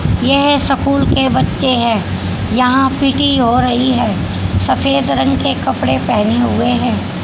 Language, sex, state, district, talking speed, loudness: Hindi, female, Haryana, Charkhi Dadri, 140 wpm, -14 LUFS